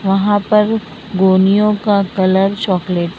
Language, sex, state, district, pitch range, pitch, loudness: Hindi, female, Maharashtra, Mumbai Suburban, 190-210 Hz, 195 Hz, -14 LUFS